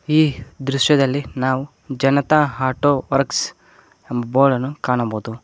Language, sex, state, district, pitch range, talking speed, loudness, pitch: Kannada, male, Karnataka, Koppal, 125-140 Hz, 100 wpm, -19 LUFS, 135 Hz